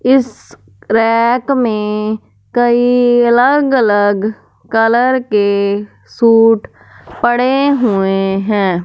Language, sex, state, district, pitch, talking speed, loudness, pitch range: Hindi, female, Punjab, Fazilka, 225 Hz, 80 wpm, -13 LUFS, 205-245 Hz